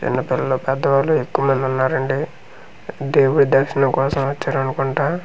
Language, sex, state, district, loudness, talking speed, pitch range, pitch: Telugu, male, Andhra Pradesh, Manyam, -18 LUFS, 105 wpm, 135-140 Hz, 135 Hz